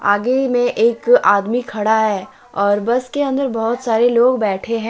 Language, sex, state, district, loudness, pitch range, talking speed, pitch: Hindi, male, Jharkhand, Deoghar, -16 LUFS, 210-245 Hz, 195 wpm, 230 Hz